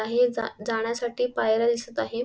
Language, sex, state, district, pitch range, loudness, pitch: Marathi, female, Maharashtra, Sindhudurg, 225-240 Hz, -26 LUFS, 235 Hz